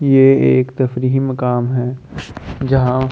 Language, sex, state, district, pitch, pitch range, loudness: Hindi, male, Delhi, New Delhi, 130 Hz, 125-135 Hz, -15 LUFS